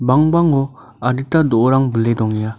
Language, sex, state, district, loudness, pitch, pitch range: Garo, male, Meghalaya, North Garo Hills, -16 LUFS, 130 Hz, 115-140 Hz